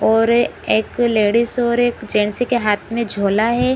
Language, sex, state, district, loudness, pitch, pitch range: Hindi, female, Bihar, Supaul, -17 LUFS, 230 Hz, 215-240 Hz